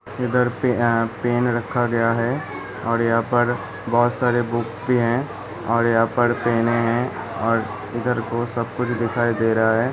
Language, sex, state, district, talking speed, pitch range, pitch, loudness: Hindi, male, Uttar Pradesh, Hamirpur, 175 wpm, 115-120 Hz, 120 Hz, -21 LUFS